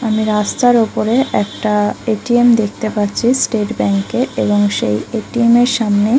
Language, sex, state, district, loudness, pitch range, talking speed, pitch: Bengali, female, West Bengal, Kolkata, -15 LUFS, 205-240 Hz, 155 wpm, 220 Hz